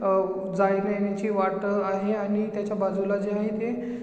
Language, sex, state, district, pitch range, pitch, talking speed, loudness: Marathi, male, Maharashtra, Chandrapur, 195-210 Hz, 200 Hz, 150 wpm, -26 LUFS